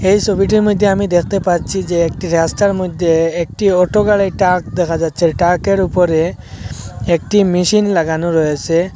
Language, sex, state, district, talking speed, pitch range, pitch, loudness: Bengali, male, Assam, Hailakandi, 145 wpm, 165-195 Hz, 180 Hz, -14 LUFS